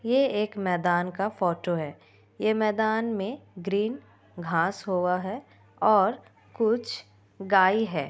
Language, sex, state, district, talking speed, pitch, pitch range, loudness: Hindi, female, Bihar, Kishanganj, 125 wpm, 195 Hz, 175-220 Hz, -26 LUFS